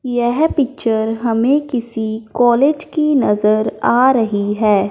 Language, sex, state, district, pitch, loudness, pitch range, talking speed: Hindi, male, Punjab, Fazilka, 240 Hz, -16 LUFS, 220-270 Hz, 120 wpm